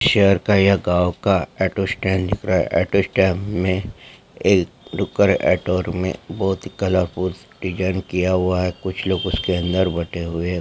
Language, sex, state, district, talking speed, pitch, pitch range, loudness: Hindi, male, Andhra Pradesh, Chittoor, 165 wpm, 95 Hz, 90-95 Hz, -20 LUFS